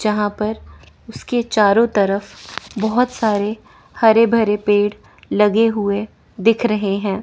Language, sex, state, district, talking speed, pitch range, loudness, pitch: Hindi, female, Chandigarh, Chandigarh, 125 wpm, 205-225 Hz, -17 LUFS, 215 Hz